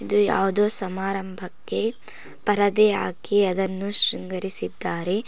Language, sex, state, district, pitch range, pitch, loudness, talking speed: Kannada, female, Karnataka, Koppal, 190-205 Hz, 195 Hz, -19 LUFS, 80 wpm